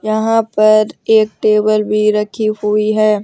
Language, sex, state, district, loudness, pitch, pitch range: Hindi, female, Rajasthan, Jaipur, -13 LUFS, 215 Hz, 210-215 Hz